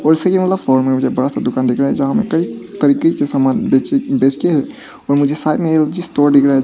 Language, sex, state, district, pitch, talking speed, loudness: Hindi, male, Arunachal Pradesh, Papum Pare, 160 Hz, 255 wpm, -15 LUFS